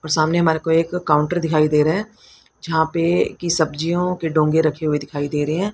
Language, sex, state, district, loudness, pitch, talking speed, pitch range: Hindi, female, Haryana, Rohtak, -19 LUFS, 160 Hz, 220 wpm, 155-170 Hz